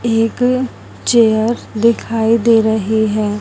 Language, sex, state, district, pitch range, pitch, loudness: Hindi, female, Haryana, Charkhi Dadri, 220-235 Hz, 225 Hz, -14 LUFS